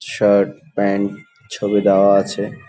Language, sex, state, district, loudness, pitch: Bengali, male, West Bengal, Dakshin Dinajpur, -17 LUFS, 100 Hz